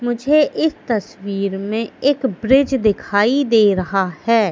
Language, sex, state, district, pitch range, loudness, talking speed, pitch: Hindi, female, Madhya Pradesh, Katni, 200-265 Hz, -17 LUFS, 130 wpm, 225 Hz